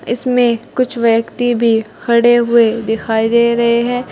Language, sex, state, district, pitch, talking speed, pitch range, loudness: Hindi, female, Uttar Pradesh, Saharanpur, 235 Hz, 145 wpm, 230-240 Hz, -14 LUFS